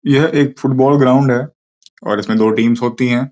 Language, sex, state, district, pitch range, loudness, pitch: Hindi, male, Uttar Pradesh, Gorakhpur, 120-140 Hz, -14 LUFS, 130 Hz